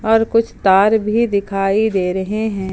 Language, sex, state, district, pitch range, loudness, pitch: Hindi, female, Jharkhand, Ranchi, 195-220 Hz, -16 LUFS, 210 Hz